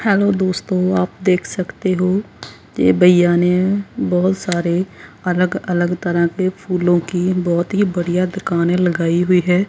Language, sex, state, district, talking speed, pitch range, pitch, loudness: Hindi, male, Punjab, Kapurthala, 150 wpm, 175-185 Hz, 180 Hz, -17 LUFS